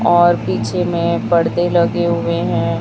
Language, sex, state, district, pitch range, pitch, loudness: Hindi, female, Chhattisgarh, Raipur, 125-175 Hz, 170 Hz, -16 LUFS